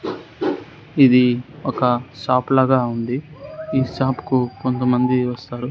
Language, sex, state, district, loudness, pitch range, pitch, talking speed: Telugu, male, Andhra Pradesh, Sri Satya Sai, -19 LUFS, 125-135 Hz, 125 Hz, 105 wpm